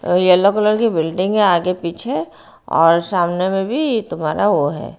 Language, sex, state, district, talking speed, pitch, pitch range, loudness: Hindi, female, Bihar, Patna, 190 wpm, 185 Hz, 175-210 Hz, -16 LUFS